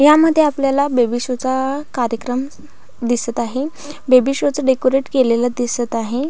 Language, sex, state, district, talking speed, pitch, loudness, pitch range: Marathi, female, Maharashtra, Pune, 150 wpm, 260 Hz, -17 LUFS, 245-280 Hz